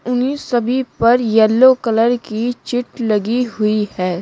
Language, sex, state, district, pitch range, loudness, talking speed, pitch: Hindi, female, Uttar Pradesh, Shamli, 220-250 Hz, -16 LUFS, 140 wpm, 235 Hz